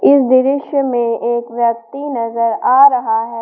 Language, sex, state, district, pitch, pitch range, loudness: Hindi, female, Jharkhand, Palamu, 240 Hz, 230-275 Hz, -14 LUFS